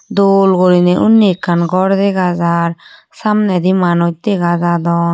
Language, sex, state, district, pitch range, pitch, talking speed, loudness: Chakma, female, Tripura, Unakoti, 170-195 Hz, 180 Hz, 130 wpm, -12 LUFS